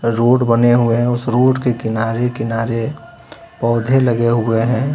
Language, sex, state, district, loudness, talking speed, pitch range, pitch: Hindi, male, Uttar Pradesh, Lucknow, -16 LUFS, 160 wpm, 115-125 Hz, 120 Hz